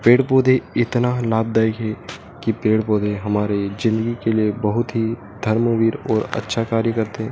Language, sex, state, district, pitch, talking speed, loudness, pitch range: Hindi, male, Madhya Pradesh, Dhar, 110 Hz, 150 wpm, -20 LUFS, 110-120 Hz